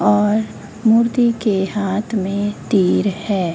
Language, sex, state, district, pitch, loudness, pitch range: Hindi, female, Bihar, Begusarai, 205 Hz, -18 LUFS, 195-220 Hz